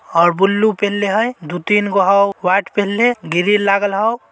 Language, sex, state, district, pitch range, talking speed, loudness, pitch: Magahi, male, Bihar, Samastipur, 190-210 Hz, 195 wpm, -15 LUFS, 200 Hz